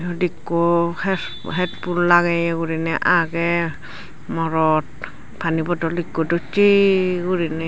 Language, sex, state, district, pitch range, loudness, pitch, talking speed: Chakma, female, Tripura, Dhalai, 165-180 Hz, -20 LUFS, 170 Hz, 95 wpm